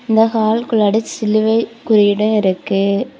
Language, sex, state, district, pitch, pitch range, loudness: Tamil, female, Tamil Nadu, Kanyakumari, 220 Hz, 205-225 Hz, -15 LUFS